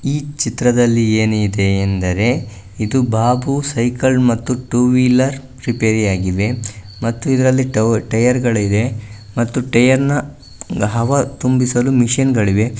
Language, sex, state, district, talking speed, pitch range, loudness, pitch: Kannada, male, Karnataka, Gulbarga, 105 wpm, 110-130 Hz, -16 LUFS, 120 Hz